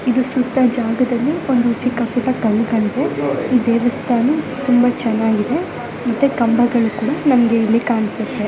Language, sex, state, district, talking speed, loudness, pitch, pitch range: Kannada, female, Karnataka, Bellary, 120 wpm, -17 LUFS, 245 Hz, 230-255 Hz